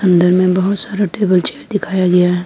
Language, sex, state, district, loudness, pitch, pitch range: Hindi, female, Jharkhand, Ranchi, -14 LUFS, 185 Hz, 180-200 Hz